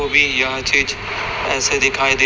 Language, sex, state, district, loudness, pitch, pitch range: Hindi, male, Chhattisgarh, Raipur, -16 LUFS, 135 Hz, 130-140 Hz